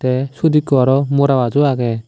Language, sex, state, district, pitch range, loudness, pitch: Chakma, male, Tripura, Dhalai, 130-140 Hz, -15 LUFS, 135 Hz